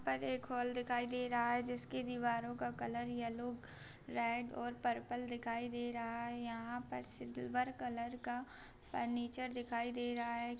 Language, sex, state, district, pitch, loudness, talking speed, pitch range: Hindi, female, Bihar, Araria, 240 Hz, -41 LUFS, 170 wpm, 235-245 Hz